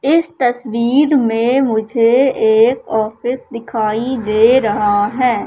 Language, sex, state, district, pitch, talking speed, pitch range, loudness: Hindi, female, Madhya Pradesh, Katni, 235 Hz, 110 wpm, 220-255 Hz, -14 LUFS